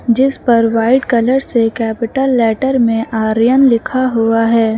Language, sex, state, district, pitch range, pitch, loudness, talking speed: Hindi, female, Uttar Pradesh, Lucknow, 225-255 Hz, 235 Hz, -13 LUFS, 150 wpm